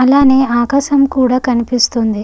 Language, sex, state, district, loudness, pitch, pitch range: Telugu, female, Andhra Pradesh, Guntur, -12 LUFS, 255 Hz, 240-275 Hz